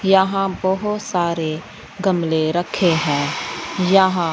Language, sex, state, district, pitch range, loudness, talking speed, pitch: Hindi, female, Punjab, Fazilka, 165-190 Hz, -19 LUFS, 95 wpm, 180 Hz